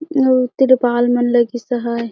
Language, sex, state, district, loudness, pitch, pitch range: Chhattisgarhi, female, Chhattisgarh, Jashpur, -15 LUFS, 245 Hz, 240-260 Hz